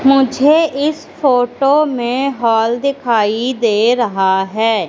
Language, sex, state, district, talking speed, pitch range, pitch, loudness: Hindi, female, Madhya Pradesh, Katni, 110 wpm, 225-275 Hz, 245 Hz, -14 LUFS